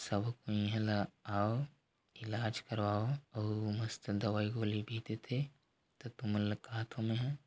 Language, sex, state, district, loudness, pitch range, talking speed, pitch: Chhattisgarhi, male, Chhattisgarh, Korba, -38 LUFS, 105-120 Hz, 145 wpm, 110 Hz